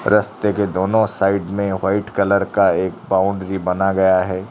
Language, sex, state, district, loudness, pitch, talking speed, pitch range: Hindi, male, Odisha, Khordha, -18 LUFS, 100 Hz, 175 wpm, 95-100 Hz